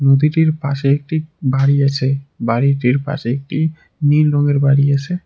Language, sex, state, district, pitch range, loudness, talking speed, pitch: Bengali, male, West Bengal, Alipurduar, 140-150 Hz, -16 LUFS, 150 wpm, 140 Hz